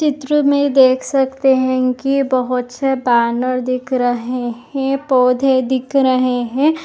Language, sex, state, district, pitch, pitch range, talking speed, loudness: Hindi, female, Goa, North and South Goa, 260 Hz, 250-270 Hz, 160 wpm, -16 LUFS